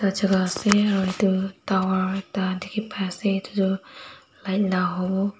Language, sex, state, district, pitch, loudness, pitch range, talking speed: Nagamese, female, Nagaland, Dimapur, 195 Hz, -24 LUFS, 185-200 Hz, 135 wpm